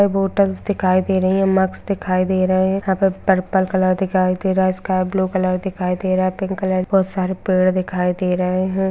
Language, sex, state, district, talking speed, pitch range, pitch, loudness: Hindi, female, Bihar, Araria, 230 wpm, 185-190 Hz, 185 Hz, -18 LUFS